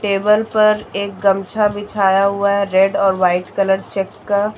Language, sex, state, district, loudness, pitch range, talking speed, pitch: Hindi, female, Jharkhand, Deoghar, -16 LUFS, 195-205 Hz, 170 wpm, 200 Hz